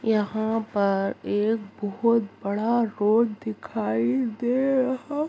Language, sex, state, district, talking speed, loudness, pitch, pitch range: Hindi, female, Bihar, Jahanabad, 100 wpm, -25 LUFS, 220 Hz, 205-235 Hz